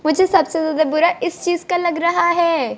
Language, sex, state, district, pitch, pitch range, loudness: Hindi, female, Bihar, Kaimur, 345 Hz, 325-350 Hz, -17 LUFS